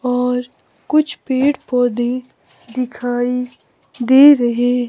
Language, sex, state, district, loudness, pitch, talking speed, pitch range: Hindi, female, Himachal Pradesh, Shimla, -16 LUFS, 250 Hz, 85 wpm, 245-260 Hz